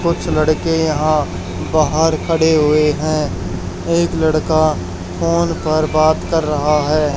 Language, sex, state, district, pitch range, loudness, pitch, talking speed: Hindi, male, Haryana, Charkhi Dadri, 120-155 Hz, -16 LUFS, 155 Hz, 125 wpm